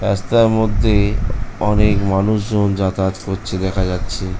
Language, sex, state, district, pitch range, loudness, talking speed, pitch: Bengali, male, West Bengal, North 24 Parganas, 95-105 Hz, -17 LUFS, 125 wpm, 100 Hz